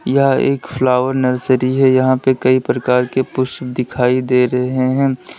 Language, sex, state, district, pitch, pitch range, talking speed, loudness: Hindi, male, Uttar Pradesh, Lalitpur, 130 Hz, 125-130 Hz, 165 wpm, -15 LUFS